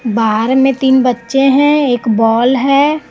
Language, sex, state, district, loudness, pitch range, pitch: Hindi, female, Chhattisgarh, Raipur, -11 LUFS, 230-275 Hz, 260 Hz